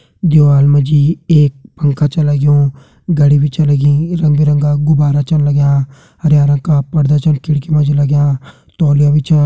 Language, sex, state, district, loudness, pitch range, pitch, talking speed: Hindi, male, Uttarakhand, Tehri Garhwal, -12 LUFS, 145-150 Hz, 145 Hz, 180 wpm